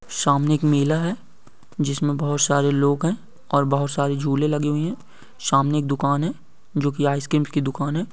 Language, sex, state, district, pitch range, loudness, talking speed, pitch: Hindi, male, Andhra Pradesh, Guntur, 140-150 Hz, -22 LUFS, 200 wpm, 145 Hz